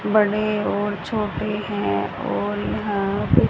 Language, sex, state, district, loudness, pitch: Hindi, female, Haryana, Charkhi Dadri, -23 LUFS, 205 Hz